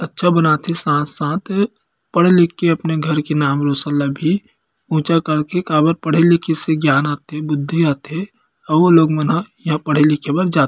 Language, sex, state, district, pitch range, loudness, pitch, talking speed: Chhattisgarhi, male, Chhattisgarh, Kabirdham, 150-175 Hz, -17 LUFS, 160 Hz, 190 wpm